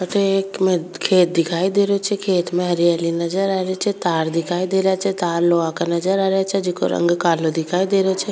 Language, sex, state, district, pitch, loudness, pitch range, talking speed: Rajasthani, female, Rajasthan, Churu, 185 Hz, -19 LUFS, 170-195 Hz, 240 wpm